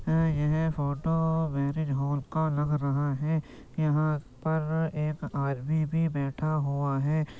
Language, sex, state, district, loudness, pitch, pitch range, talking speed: Hindi, male, Uttar Pradesh, Jyotiba Phule Nagar, -29 LUFS, 150 Hz, 140-160 Hz, 130 wpm